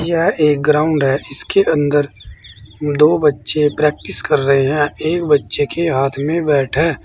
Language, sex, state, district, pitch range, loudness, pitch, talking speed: Hindi, male, Uttar Pradesh, Saharanpur, 135-155 Hz, -16 LUFS, 145 Hz, 160 wpm